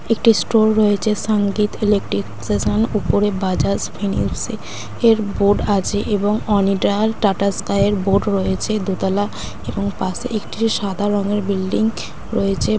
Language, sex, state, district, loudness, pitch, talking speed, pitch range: Bengali, female, West Bengal, Dakshin Dinajpur, -19 LUFS, 200 Hz, 125 wpm, 190-210 Hz